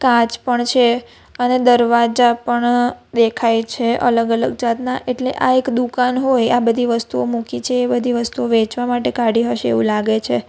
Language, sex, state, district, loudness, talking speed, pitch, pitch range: Gujarati, female, Gujarat, Valsad, -17 LUFS, 175 wpm, 240 Hz, 230-245 Hz